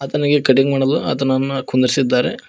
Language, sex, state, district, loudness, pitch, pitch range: Kannada, male, Karnataka, Koppal, -16 LUFS, 135 Hz, 130-140 Hz